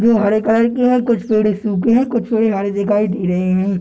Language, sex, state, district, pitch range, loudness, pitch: Hindi, male, Bihar, Darbhanga, 200-230 Hz, -16 LUFS, 215 Hz